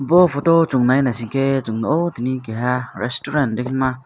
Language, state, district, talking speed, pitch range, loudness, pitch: Kokborok, Tripura, West Tripura, 175 wpm, 125-145 Hz, -19 LUFS, 130 Hz